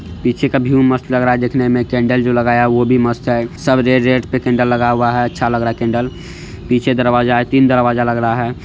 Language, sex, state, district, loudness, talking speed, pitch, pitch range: Hindi, male, Bihar, Araria, -14 LUFS, 270 wpm, 120 Hz, 120-125 Hz